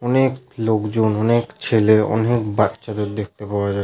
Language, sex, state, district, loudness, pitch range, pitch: Bengali, male, West Bengal, Malda, -19 LUFS, 105-115 Hz, 110 Hz